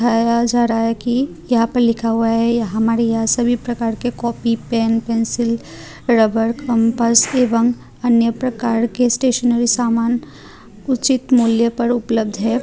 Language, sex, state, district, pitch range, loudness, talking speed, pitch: Hindi, female, Tripura, Unakoti, 230-240 Hz, -17 LUFS, 145 wpm, 235 Hz